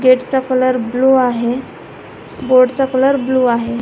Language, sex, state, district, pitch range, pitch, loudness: Marathi, female, Maharashtra, Pune, 245-260 Hz, 255 Hz, -14 LUFS